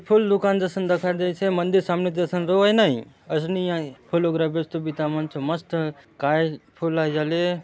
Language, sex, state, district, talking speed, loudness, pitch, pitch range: Halbi, male, Chhattisgarh, Bastar, 175 wpm, -23 LUFS, 170 Hz, 155-180 Hz